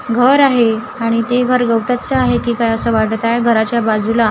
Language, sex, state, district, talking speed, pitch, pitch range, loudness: Marathi, female, Maharashtra, Gondia, 210 wpm, 235 Hz, 225-250 Hz, -14 LUFS